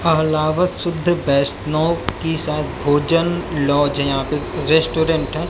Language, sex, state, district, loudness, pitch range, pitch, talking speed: Hindi, male, Haryana, Jhajjar, -18 LUFS, 145-165 Hz, 155 Hz, 120 wpm